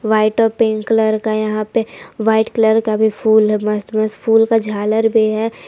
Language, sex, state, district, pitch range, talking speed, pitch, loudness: Hindi, female, Jharkhand, Palamu, 215-225 Hz, 210 wpm, 220 Hz, -15 LUFS